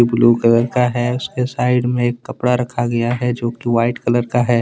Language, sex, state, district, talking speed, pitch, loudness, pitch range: Hindi, male, Jharkhand, Deoghar, 235 wpm, 120 Hz, -17 LUFS, 120-125 Hz